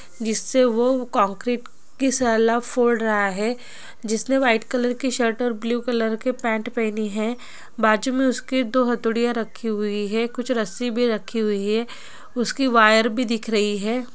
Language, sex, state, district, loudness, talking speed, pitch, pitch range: Hindi, female, Bihar, Jahanabad, -22 LUFS, 165 wpm, 235 Hz, 220-245 Hz